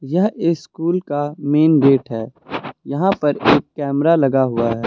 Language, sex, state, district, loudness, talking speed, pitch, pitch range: Hindi, male, Uttar Pradesh, Lucknow, -17 LUFS, 160 wpm, 145 Hz, 135-165 Hz